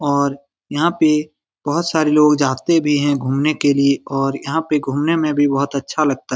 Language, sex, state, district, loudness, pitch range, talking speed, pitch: Hindi, male, Bihar, Lakhisarai, -17 LUFS, 140-155 Hz, 205 wpm, 145 Hz